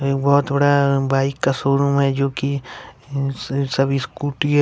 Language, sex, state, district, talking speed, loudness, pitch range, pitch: Hindi, male, Jharkhand, Ranchi, 145 wpm, -19 LUFS, 135-140 Hz, 140 Hz